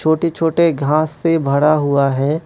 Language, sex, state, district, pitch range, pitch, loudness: Hindi, male, Manipur, Imphal West, 145-165 Hz, 155 Hz, -16 LUFS